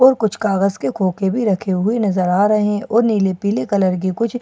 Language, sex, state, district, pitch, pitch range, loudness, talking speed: Hindi, female, Bihar, Katihar, 200 Hz, 190-220 Hz, -17 LUFS, 270 wpm